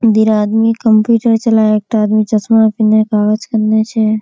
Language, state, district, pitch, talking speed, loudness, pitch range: Surjapuri, Bihar, Kishanganj, 220 Hz, 155 wpm, -12 LUFS, 215-225 Hz